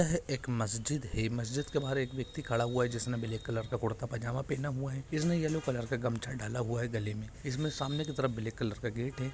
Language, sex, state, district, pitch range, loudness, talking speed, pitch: Hindi, male, Bihar, Purnia, 115-140 Hz, -35 LUFS, 285 wpm, 125 Hz